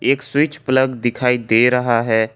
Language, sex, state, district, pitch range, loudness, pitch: Hindi, male, Jharkhand, Ranchi, 120-130 Hz, -17 LUFS, 125 Hz